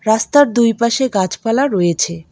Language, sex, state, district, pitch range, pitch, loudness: Bengali, female, West Bengal, Alipurduar, 185-255 Hz, 225 Hz, -15 LUFS